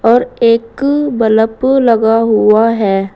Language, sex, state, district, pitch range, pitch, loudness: Hindi, female, Uttar Pradesh, Saharanpur, 220-240 Hz, 230 Hz, -11 LUFS